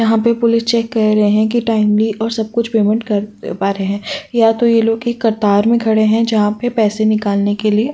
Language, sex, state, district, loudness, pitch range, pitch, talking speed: Hindi, female, Uttar Pradesh, Jyotiba Phule Nagar, -15 LUFS, 210-230 Hz, 220 Hz, 235 wpm